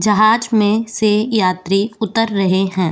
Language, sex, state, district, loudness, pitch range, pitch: Hindi, female, Goa, North and South Goa, -16 LUFS, 195-220 Hz, 210 Hz